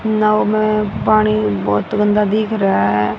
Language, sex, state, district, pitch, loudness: Hindi, female, Haryana, Rohtak, 205 Hz, -15 LUFS